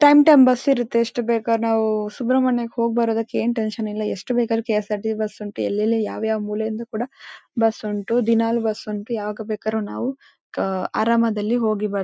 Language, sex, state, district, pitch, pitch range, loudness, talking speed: Kannada, female, Karnataka, Dakshina Kannada, 225 Hz, 215-235 Hz, -21 LUFS, 175 wpm